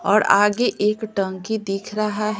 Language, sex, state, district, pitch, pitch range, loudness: Hindi, female, Bihar, Patna, 210 Hz, 200-215 Hz, -20 LUFS